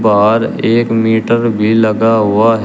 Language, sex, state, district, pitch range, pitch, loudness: Hindi, male, Uttar Pradesh, Shamli, 110-115 Hz, 110 Hz, -12 LUFS